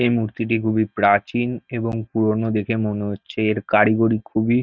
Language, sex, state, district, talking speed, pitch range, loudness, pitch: Bengali, male, West Bengal, North 24 Parganas, 170 wpm, 110-115 Hz, -21 LUFS, 110 Hz